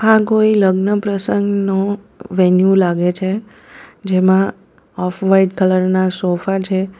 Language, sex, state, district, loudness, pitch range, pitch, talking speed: Gujarati, female, Gujarat, Valsad, -15 LUFS, 185-200 Hz, 195 Hz, 130 wpm